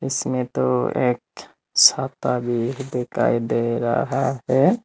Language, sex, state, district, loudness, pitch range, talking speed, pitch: Hindi, male, Tripura, Unakoti, -21 LUFS, 120-130 Hz, 110 wpm, 125 Hz